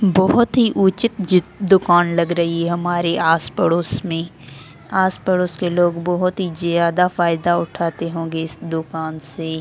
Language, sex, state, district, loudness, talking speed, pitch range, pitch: Hindi, female, Delhi, New Delhi, -18 LUFS, 145 wpm, 165-180 Hz, 170 Hz